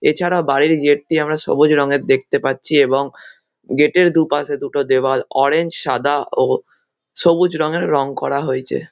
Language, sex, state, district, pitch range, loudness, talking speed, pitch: Bengali, male, West Bengal, Malda, 140-165 Hz, -16 LUFS, 160 wpm, 145 Hz